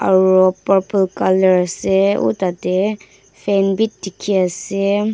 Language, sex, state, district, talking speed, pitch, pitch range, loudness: Nagamese, female, Nagaland, Dimapur, 130 wpm, 195 Hz, 185-200 Hz, -16 LUFS